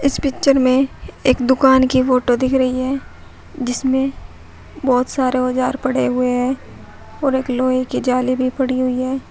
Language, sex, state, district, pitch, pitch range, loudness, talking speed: Hindi, female, Uttar Pradesh, Shamli, 255 Hz, 255-265 Hz, -17 LUFS, 170 wpm